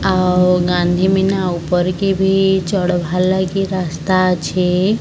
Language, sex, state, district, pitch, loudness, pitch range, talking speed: Odia, male, Odisha, Sambalpur, 185 Hz, -16 LUFS, 180-190 Hz, 110 wpm